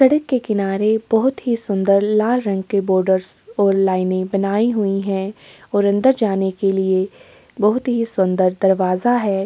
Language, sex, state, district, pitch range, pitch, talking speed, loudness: Hindi, female, Uttar Pradesh, Jyotiba Phule Nagar, 190-230 Hz, 200 Hz, 160 wpm, -18 LUFS